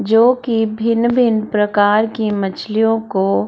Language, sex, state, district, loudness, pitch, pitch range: Hindi, female, Bihar, Darbhanga, -16 LUFS, 220 Hz, 205-225 Hz